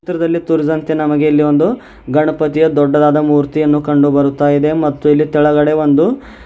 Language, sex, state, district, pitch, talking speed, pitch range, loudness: Kannada, male, Karnataka, Bidar, 150 Hz, 150 wpm, 145-155 Hz, -13 LUFS